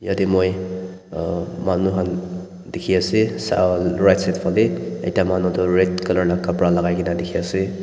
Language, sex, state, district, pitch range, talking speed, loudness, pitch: Nagamese, male, Nagaland, Dimapur, 90-95 Hz, 145 wpm, -20 LUFS, 90 Hz